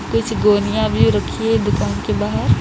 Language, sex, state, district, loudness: Hindi, female, Punjab, Kapurthala, -17 LUFS